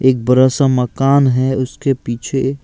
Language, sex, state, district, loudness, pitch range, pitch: Hindi, male, Assam, Kamrup Metropolitan, -15 LUFS, 125-135 Hz, 130 Hz